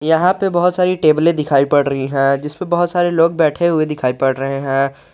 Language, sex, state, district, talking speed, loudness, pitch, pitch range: Hindi, male, Jharkhand, Garhwa, 210 wpm, -15 LUFS, 155 Hz, 135-175 Hz